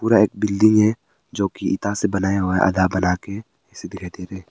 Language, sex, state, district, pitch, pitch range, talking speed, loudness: Hindi, male, Arunachal Pradesh, Papum Pare, 100 Hz, 95-105 Hz, 185 wpm, -19 LUFS